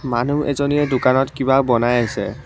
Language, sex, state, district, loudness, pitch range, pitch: Assamese, male, Assam, Kamrup Metropolitan, -18 LUFS, 120-140 Hz, 130 Hz